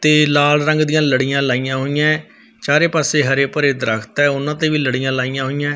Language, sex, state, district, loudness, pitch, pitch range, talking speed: Punjabi, male, Punjab, Fazilka, -16 LUFS, 145 Hz, 135-155 Hz, 200 wpm